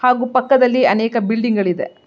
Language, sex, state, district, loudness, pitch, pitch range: Kannada, female, Karnataka, Mysore, -16 LUFS, 235 Hz, 220-255 Hz